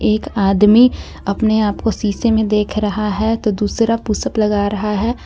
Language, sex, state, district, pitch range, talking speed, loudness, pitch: Hindi, female, Jharkhand, Garhwa, 210-225 Hz, 185 wpm, -16 LUFS, 215 Hz